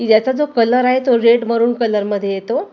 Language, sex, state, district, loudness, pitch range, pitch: Marathi, female, Maharashtra, Gondia, -15 LUFS, 220-250 Hz, 235 Hz